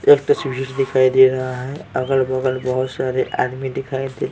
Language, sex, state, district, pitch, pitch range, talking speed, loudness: Hindi, male, Bihar, Patna, 130 Hz, 130-135 Hz, 180 wpm, -19 LUFS